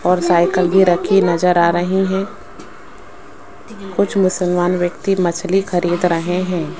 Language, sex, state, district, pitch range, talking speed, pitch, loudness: Hindi, female, Rajasthan, Jaipur, 175-190 Hz, 130 wpm, 180 Hz, -16 LUFS